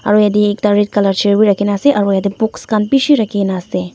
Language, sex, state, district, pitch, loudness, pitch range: Nagamese, female, Nagaland, Dimapur, 205 Hz, -14 LUFS, 200-215 Hz